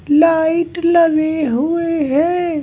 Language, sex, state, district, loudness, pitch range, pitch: Hindi, male, Bihar, Patna, -15 LUFS, 310-335 Hz, 325 Hz